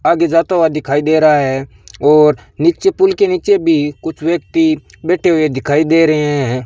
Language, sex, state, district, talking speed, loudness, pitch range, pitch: Hindi, male, Rajasthan, Bikaner, 190 wpm, -13 LUFS, 145-180 Hz, 160 Hz